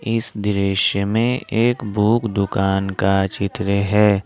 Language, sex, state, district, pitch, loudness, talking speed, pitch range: Hindi, male, Jharkhand, Ranchi, 100 Hz, -19 LUFS, 125 wpm, 100-110 Hz